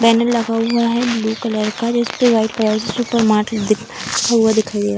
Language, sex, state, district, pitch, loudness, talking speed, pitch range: Hindi, female, Bihar, Darbhanga, 225 Hz, -17 LUFS, 230 wpm, 215-235 Hz